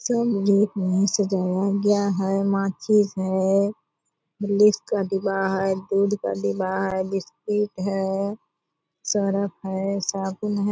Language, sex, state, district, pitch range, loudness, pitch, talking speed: Hindi, female, Bihar, Purnia, 190-205 Hz, -23 LUFS, 195 Hz, 125 wpm